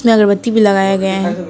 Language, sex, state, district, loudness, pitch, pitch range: Hindi, female, West Bengal, Alipurduar, -13 LUFS, 195 Hz, 190-220 Hz